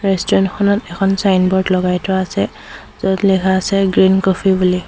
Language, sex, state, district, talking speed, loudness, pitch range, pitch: Assamese, female, Assam, Sonitpur, 160 wpm, -15 LUFS, 185-195 Hz, 190 Hz